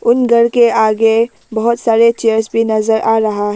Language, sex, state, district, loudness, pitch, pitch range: Hindi, female, Arunachal Pradesh, Lower Dibang Valley, -13 LUFS, 225 Hz, 220-235 Hz